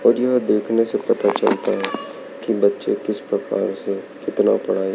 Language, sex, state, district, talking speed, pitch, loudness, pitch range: Hindi, male, Madhya Pradesh, Dhar, 170 wpm, 115 Hz, -20 LUFS, 100-120 Hz